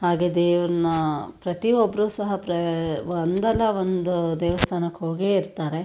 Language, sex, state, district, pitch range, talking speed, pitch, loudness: Kannada, female, Karnataka, Shimoga, 170-195 Hz, 100 wpm, 175 Hz, -23 LUFS